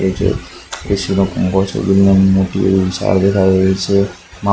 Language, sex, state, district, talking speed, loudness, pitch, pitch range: Gujarati, male, Gujarat, Gandhinagar, 145 wpm, -14 LUFS, 95 Hz, 95-100 Hz